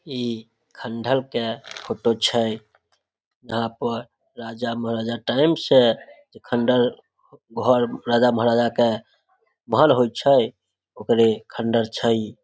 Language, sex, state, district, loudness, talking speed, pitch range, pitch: Maithili, male, Bihar, Samastipur, -21 LUFS, 115 wpm, 115-125 Hz, 115 Hz